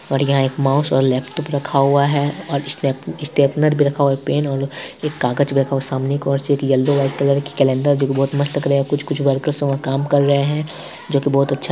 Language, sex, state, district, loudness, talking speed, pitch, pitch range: Hindi, male, Bihar, Saharsa, -18 LUFS, 265 wpm, 140 Hz, 135-145 Hz